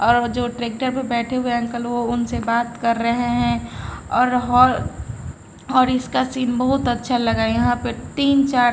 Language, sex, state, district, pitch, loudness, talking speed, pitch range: Hindi, female, Bihar, Patna, 240 Hz, -20 LUFS, 170 wpm, 230-250 Hz